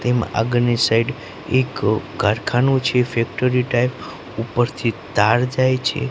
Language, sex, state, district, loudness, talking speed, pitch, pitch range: Gujarati, male, Gujarat, Gandhinagar, -19 LUFS, 125 wpm, 120 Hz, 115-130 Hz